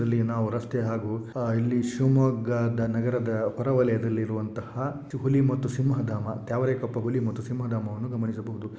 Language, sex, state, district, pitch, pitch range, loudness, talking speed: Kannada, male, Karnataka, Shimoga, 120 Hz, 115-125 Hz, -27 LUFS, 115 wpm